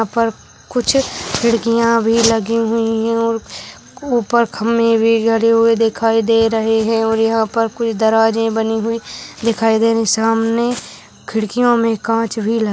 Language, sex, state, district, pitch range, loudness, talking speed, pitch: Hindi, male, Bihar, Darbhanga, 225-230 Hz, -16 LUFS, 160 wpm, 225 Hz